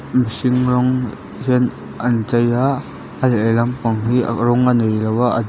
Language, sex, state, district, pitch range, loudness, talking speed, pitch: Mizo, male, Mizoram, Aizawl, 115-125 Hz, -17 LUFS, 165 wpm, 120 Hz